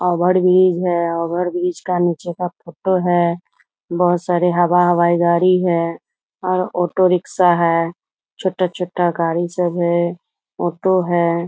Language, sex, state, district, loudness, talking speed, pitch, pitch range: Hindi, female, Bihar, Muzaffarpur, -17 LUFS, 135 wpm, 175 Hz, 170-180 Hz